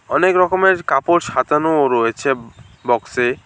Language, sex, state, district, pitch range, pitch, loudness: Bengali, male, West Bengal, Alipurduar, 120-170 Hz, 135 Hz, -16 LUFS